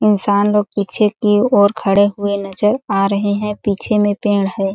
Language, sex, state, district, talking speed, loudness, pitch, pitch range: Hindi, female, Chhattisgarh, Sarguja, 190 wpm, -16 LUFS, 205 Hz, 200-210 Hz